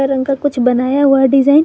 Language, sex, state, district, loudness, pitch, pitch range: Hindi, female, Jharkhand, Garhwa, -13 LUFS, 270 Hz, 265-280 Hz